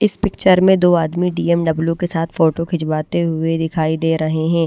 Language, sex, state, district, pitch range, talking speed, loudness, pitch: Hindi, female, Maharashtra, Mumbai Suburban, 160-175 Hz, 190 wpm, -17 LUFS, 165 Hz